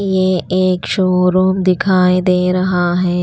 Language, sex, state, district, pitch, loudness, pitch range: Hindi, female, Punjab, Pathankot, 185 Hz, -14 LUFS, 180-185 Hz